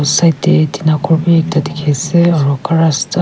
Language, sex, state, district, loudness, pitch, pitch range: Nagamese, female, Nagaland, Kohima, -13 LUFS, 160 Hz, 150-170 Hz